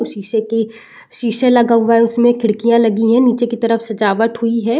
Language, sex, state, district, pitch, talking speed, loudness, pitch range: Hindi, female, Bihar, Saran, 230 Hz, 200 wpm, -14 LUFS, 225-235 Hz